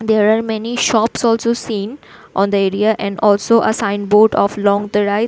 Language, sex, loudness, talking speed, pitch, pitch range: English, female, -15 LUFS, 180 wpm, 215 Hz, 205-225 Hz